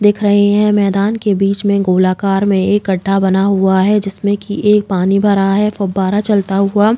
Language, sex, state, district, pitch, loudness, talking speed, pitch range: Hindi, female, Uttar Pradesh, Jalaun, 200 Hz, -13 LUFS, 200 wpm, 195-205 Hz